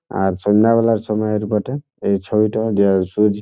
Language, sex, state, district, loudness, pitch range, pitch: Bengali, male, West Bengal, Jhargram, -18 LUFS, 100-110 Hz, 105 Hz